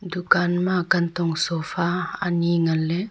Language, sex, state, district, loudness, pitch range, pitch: Wancho, female, Arunachal Pradesh, Longding, -22 LUFS, 170-180 Hz, 175 Hz